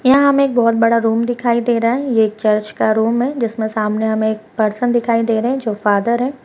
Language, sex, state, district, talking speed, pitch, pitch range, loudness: Hindi, female, Bihar, Darbhanga, 240 wpm, 230 Hz, 220-245 Hz, -16 LUFS